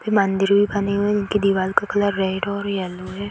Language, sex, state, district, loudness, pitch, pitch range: Hindi, female, Bihar, Darbhanga, -20 LUFS, 200 Hz, 190-205 Hz